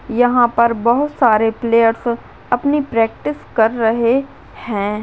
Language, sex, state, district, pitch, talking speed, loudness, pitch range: Hindi, female, Maharashtra, Aurangabad, 235 Hz, 120 wpm, -16 LUFS, 225-245 Hz